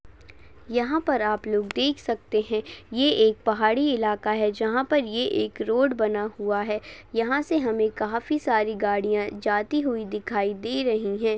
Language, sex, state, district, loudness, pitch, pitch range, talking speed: Hindi, female, Maharashtra, Solapur, -25 LUFS, 220 Hz, 210-245 Hz, 170 wpm